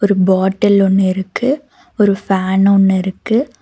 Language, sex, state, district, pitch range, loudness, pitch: Tamil, female, Karnataka, Bangalore, 190-220 Hz, -14 LUFS, 195 Hz